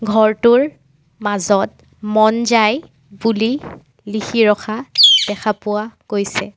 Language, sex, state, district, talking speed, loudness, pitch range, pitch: Assamese, female, Assam, Sonitpur, 90 wpm, -15 LUFS, 205-225 Hz, 215 Hz